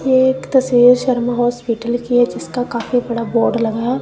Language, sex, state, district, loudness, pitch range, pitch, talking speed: Hindi, female, Punjab, Kapurthala, -16 LUFS, 235-255 Hz, 245 Hz, 195 wpm